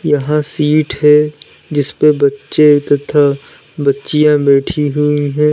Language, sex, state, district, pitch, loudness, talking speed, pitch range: Hindi, male, Uttar Pradesh, Lalitpur, 150 Hz, -13 LUFS, 110 wpm, 145-150 Hz